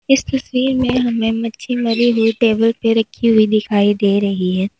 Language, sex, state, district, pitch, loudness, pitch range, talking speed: Hindi, female, Uttar Pradesh, Lalitpur, 225 Hz, -16 LUFS, 215-245 Hz, 190 wpm